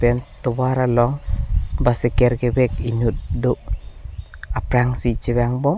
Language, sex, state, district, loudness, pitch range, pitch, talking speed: Karbi, male, Assam, Karbi Anglong, -20 LUFS, 100-125 Hz, 120 Hz, 115 wpm